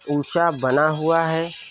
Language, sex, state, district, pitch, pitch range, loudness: Hindi, male, Uttar Pradesh, Varanasi, 160 Hz, 145-165 Hz, -20 LUFS